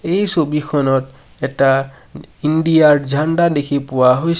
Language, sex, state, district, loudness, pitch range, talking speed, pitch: Assamese, male, Assam, Sonitpur, -15 LUFS, 135-160 Hz, 110 wpm, 145 Hz